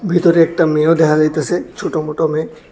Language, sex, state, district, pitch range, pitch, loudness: Bengali, male, Tripura, West Tripura, 155-165 Hz, 160 Hz, -15 LUFS